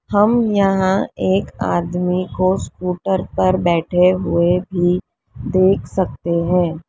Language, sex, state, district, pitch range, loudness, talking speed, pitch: Hindi, female, Uttar Pradesh, Lalitpur, 175-190 Hz, -17 LUFS, 115 wpm, 185 Hz